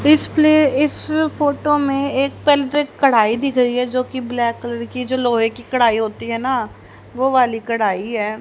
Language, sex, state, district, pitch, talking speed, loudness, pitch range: Hindi, female, Haryana, Charkhi Dadri, 255 Hz, 180 wpm, -18 LUFS, 235-285 Hz